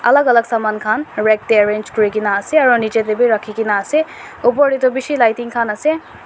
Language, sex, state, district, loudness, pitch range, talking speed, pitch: Nagamese, female, Nagaland, Dimapur, -15 LUFS, 215-260 Hz, 250 wpm, 230 Hz